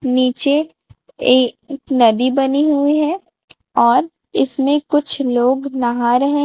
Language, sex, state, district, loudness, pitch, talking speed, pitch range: Hindi, female, Chhattisgarh, Raipur, -16 LUFS, 275 Hz, 110 wpm, 255-295 Hz